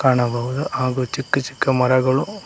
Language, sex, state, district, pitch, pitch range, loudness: Kannada, male, Karnataka, Koppal, 130 Hz, 130-135 Hz, -20 LUFS